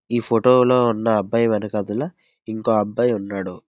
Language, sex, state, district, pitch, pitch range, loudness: Telugu, male, Andhra Pradesh, Visakhapatnam, 115 Hz, 105-120 Hz, -19 LUFS